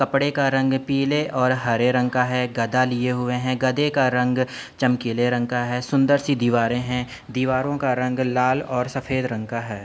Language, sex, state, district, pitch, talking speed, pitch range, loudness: Hindi, male, Uttar Pradesh, Budaun, 125 Hz, 200 wpm, 125-135 Hz, -22 LUFS